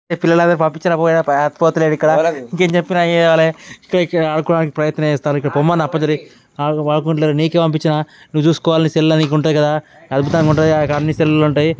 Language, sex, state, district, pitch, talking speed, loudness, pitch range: Telugu, male, Telangana, Karimnagar, 160 Hz, 160 wpm, -15 LUFS, 150-165 Hz